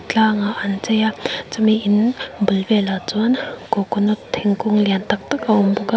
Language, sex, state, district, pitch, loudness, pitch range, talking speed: Mizo, female, Mizoram, Aizawl, 215 Hz, -19 LUFS, 205-220 Hz, 180 wpm